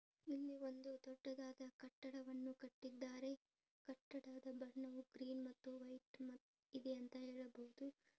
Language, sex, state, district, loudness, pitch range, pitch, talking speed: Kannada, female, Karnataka, Chamarajanagar, -54 LUFS, 255-265 Hz, 260 Hz, 105 wpm